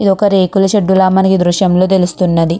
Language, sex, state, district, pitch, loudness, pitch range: Telugu, female, Andhra Pradesh, Chittoor, 190 Hz, -11 LUFS, 180-195 Hz